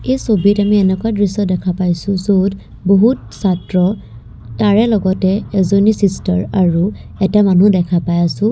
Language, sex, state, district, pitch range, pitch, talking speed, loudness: Assamese, female, Assam, Kamrup Metropolitan, 180-205 Hz, 195 Hz, 135 wpm, -14 LUFS